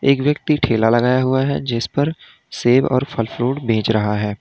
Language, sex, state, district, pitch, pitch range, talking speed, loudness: Hindi, male, Uttar Pradesh, Lalitpur, 125 Hz, 115-140 Hz, 190 wpm, -18 LUFS